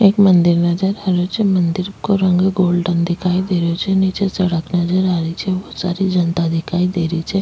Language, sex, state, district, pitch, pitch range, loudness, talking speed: Rajasthani, female, Rajasthan, Nagaur, 180 Hz, 175-190 Hz, -17 LUFS, 220 wpm